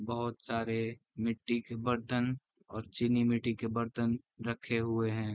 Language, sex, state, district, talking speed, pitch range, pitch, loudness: Hindi, male, Chhattisgarh, Raigarh, 145 wpm, 115-120 Hz, 115 Hz, -34 LUFS